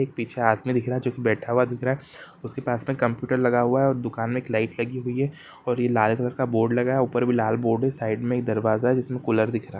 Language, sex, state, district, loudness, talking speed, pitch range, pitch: Hindi, male, Jharkhand, Jamtara, -24 LUFS, 305 wpm, 115-125 Hz, 120 Hz